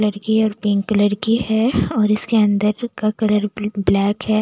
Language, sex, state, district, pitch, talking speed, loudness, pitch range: Hindi, female, Bihar, West Champaran, 210 Hz, 205 wpm, -18 LUFS, 205-220 Hz